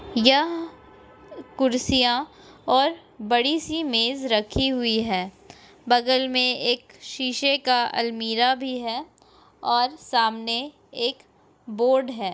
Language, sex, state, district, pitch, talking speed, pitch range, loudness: Hindi, female, Bihar, East Champaran, 255 Hz, 100 wpm, 235-275 Hz, -23 LUFS